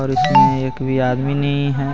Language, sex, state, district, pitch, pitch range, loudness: Hindi, male, Jharkhand, Garhwa, 135 Hz, 130-140 Hz, -17 LUFS